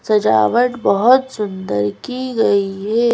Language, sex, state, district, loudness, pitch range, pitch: Hindi, female, Madhya Pradesh, Bhopal, -16 LUFS, 195-245 Hz, 215 Hz